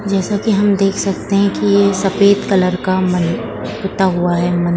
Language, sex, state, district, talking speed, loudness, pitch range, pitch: Hindi, female, Bihar, Saran, 215 wpm, -15 LUFS, 180-200 Hz, 195 Hz